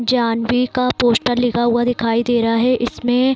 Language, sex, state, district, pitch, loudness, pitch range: Hindi, female, Bihar, Sitamarhi, 240 Hz, -17 LUFS, 235-250 Hz